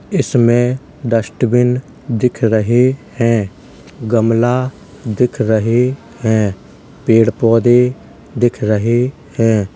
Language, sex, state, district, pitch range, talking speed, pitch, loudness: Hindi, male, Uttar Pradesh, Jalaun, 115-125 Hz, 90 wpm, 120 Hz, -15 LUFS